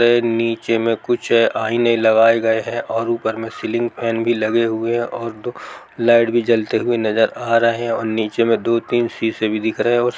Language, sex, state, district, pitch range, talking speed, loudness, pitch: Hindi, male, Bihar, East Champaran, 115-120 Hz, 220 wpm, -18 LUFS, 115 Hz